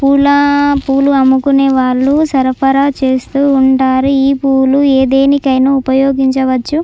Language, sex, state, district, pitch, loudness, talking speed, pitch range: Telugu, female, Andhra Pradesh, Chittoor, 270 Hz, -11 LUFS, 95 wpm, 265-280 Hz